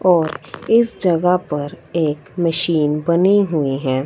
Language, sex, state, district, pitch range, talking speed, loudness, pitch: Hindi, female, Punjab, Fazilka, 150-180 Hz, 135 wpm, -17 LUFS, 165 Hz